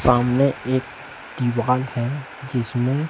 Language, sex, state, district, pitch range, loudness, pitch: Hindi, male, Chhattisgarh, Raipur, 120-130 Hz, -22 LUFS, 125 Hz